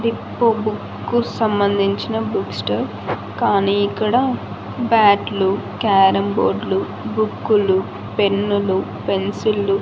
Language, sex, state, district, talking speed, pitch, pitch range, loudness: Telugu, female, Andhra Pradesh, Annamaya, 120 wpm, 205 Hz, 200-220 Hz, -19 LUFS